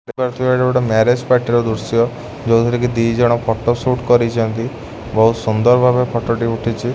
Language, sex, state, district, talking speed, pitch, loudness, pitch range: Odia, male, Odisha, Khordha, 175 wpm, 120 Hz, -16 LUFS, 115-125 Hz